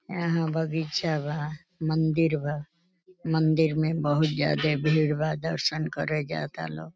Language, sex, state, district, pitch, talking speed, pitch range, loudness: Bhojpuri, female, Uttar Pradesh, Deoria, 155 Hz, 130 wpm, 150-165 Hz, -27 LUFS